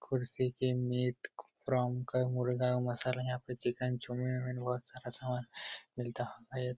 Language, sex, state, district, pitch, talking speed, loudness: Hindi, male, Bihar, Araria, 125 Hz, 135 wpm, -36 LUFS